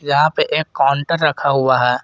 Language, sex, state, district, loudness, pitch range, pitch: Hindi, male, Jharkhand, Garhwa, -16 LUFS, 135-155 Hz, 140 Hz